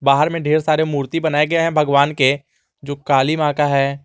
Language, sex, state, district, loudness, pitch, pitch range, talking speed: Hindi, male, Jharkhand, Garhwa, -17 LUFS, 150 Hz, 140-155 Hz, 220 wpm